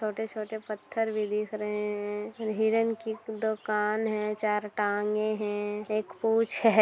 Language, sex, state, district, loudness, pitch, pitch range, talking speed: Hindi, female, Bihar, Darbhanga, -30 LUFS, 215 Hz, 210-220 Hz, 150 wpm